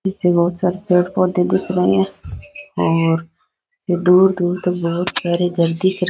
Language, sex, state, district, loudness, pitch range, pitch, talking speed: Rajasthani, female, Rajasthan, Nagaur, -17 LUFS, 170-185 Hz, 180 Hz, 165 wpm